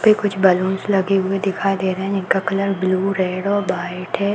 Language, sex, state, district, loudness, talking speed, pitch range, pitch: Hindi, female, Uttar Pradesh, Varanasi, -19 LUFS, 235 wpm, 185-195 Hz, 195 Hz